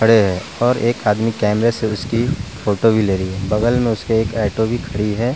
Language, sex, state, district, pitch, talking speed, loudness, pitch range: Hindi, male, Bihar, Vaishali, 110 Hz, 210 wpm, -18 LUFS, 105-115 Hz